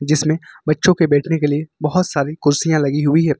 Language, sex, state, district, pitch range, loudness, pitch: Hindi, male, Uttar Pradesh, Lucknow, 145-160 Hz, -17 LUFS, 155 Hz